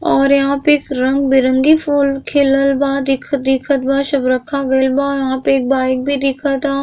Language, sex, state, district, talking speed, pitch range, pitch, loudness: Bhojpuri, female, Uttar Pradesh, Gorakhpur, 195 wpm, 265-280 Hz, 275 Hz, -15 LUFS